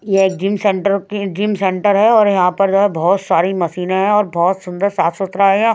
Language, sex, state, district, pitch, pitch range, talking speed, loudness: Hindi, female, Maharashtra, Washim, 195 Hz, 185-205 Hz, 250 wpm, -15 LUFS